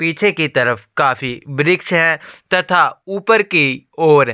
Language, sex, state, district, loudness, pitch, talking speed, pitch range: Hindi, male, Chhattisgarh, Sukma, -15 LUFS, 165 Hz, 140 wpm, 135-180 Hz